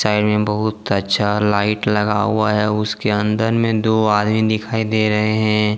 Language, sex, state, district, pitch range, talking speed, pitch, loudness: Hindi, male, Jharkhand, Deoghar, 105-110 Hz, 175 wpm, 105 Hz, -17 LUFS